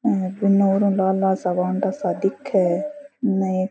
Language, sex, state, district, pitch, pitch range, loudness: Rajasthani, female, Rajasthan, Churu, 195 Hz, 190-205 Hz, -21 LUFS